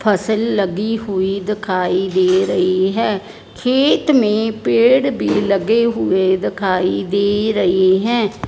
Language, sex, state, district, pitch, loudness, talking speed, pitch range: Hindi, male, Punjab, Fazilka, 205 Hz, -16 LUFS, 120 wpm, 190-225 Hz